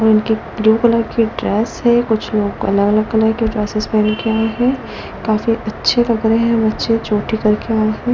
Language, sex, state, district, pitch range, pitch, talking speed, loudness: Hindi, female, Delhi, New Delhi, 215-230 Hz, 220 Hz, 200 wpm, -16 LUFS